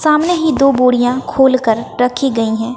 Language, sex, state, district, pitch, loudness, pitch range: Hindi, female, Bihar, West Champaran, 255 Hz, -13 LUFS, 245-275 Hz